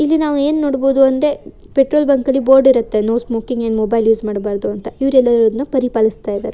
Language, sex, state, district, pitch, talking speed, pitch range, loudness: Kannada, female, Karnataka, Shimoga, 260 Hz, 185 wpm, 225-275 Hz, -15 LUFS